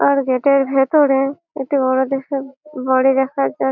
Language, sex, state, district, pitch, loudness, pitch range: Bengali, female, West Bengal, Malda, 270 Hz, -17 LUFS, 260-280 Hz